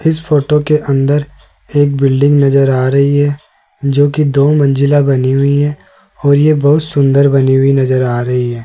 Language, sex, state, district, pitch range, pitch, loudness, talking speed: Hindi, male, Rajasthan, Jaipur, 135-145 Hz, 140 Hz, -11 LUFS, 185 wpm